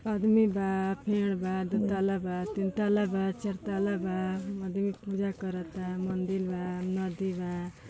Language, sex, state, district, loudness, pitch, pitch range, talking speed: Bhojpuri, female, Uttar Pradesh, Ghazipur, -31 LUFS, 190 Hz, 185-200 Hz, 150 wpm